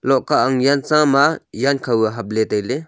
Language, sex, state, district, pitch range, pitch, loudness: Wancho, male, Arunachal Pradesh, Longding, 115-140 Hz, 130 Hz, -17 LUFS